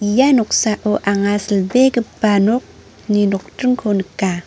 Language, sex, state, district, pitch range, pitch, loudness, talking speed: Garo, female, Meghalaya, North Garo Hills, 200-240 Hz, 210 Hz, -16 LUFS, 95 wpm